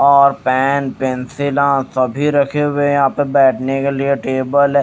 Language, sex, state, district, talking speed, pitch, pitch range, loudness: Hindi, male, Odisha, Nuapada, 175 wpm, 140 Hz, 130-140 Hz, -15 LUFS